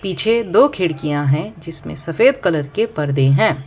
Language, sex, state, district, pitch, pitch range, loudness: Hindi, female, Gujarat, Valsad, 165 Hz, 150-205 Hz, -17 LUFS